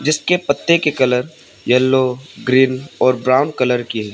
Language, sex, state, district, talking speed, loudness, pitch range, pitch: Hindi, male, Arunachal Pradesh, Papum Pare, 160 wpm, -16 LUFS, 125-150 Hz, 130 Hz